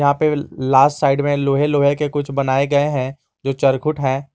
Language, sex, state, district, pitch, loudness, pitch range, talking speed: Hindi, male, Jharkhand, Garhwa, 140 Hz, -18 LUFS, 135-145 Hz, 205 wpm